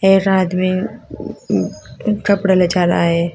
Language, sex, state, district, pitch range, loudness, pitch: Hindi, female, Uttar Pradesh, Shamli, 180-195 Hz, -16 LUFS, 185 Hz